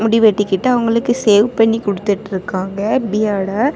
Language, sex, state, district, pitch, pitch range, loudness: Tamil, female, Tamil Nadu, Kanyakumari, 215 Hz, 200-230 Hz, -15 LUFS